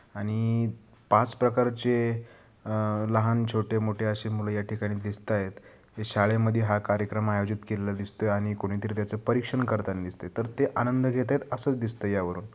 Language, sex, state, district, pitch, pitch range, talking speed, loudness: Marathi, male, Maharashtra, Sindhudurg, 110 Hz, 105-115 Hz, 160 wpm, -28 LUFS